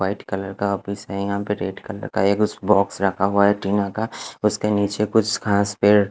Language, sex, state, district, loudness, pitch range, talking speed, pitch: Hindi, male, Punjab, Fazilka, -21 LUFS, 100-105 Hz, 235 wpm, 100 Hz